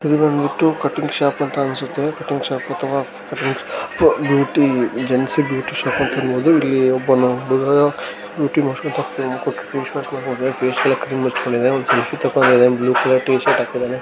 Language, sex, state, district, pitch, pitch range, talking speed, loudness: Kannada, male, Karnataka, Gulbarga, 135 Hz, 130-145 Hz, 145 wpm, -18 LUFS